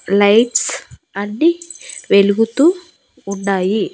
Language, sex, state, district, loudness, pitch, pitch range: Telugu, female, Andhra Pradesh, Annamaya, -15 LUFS, 220 Hz, 200-335 Hz